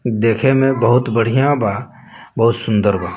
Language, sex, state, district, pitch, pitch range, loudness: Bhojpuri, male, Bihar, Muzaffarpur, 115 Hz, 110-130 Hz, -15 LUFS